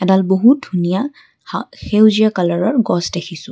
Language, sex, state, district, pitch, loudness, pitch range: Assamese, female, Assam, Kamrup Metropolitan, 190 Hz, -15 LUFS, 175-240 Hz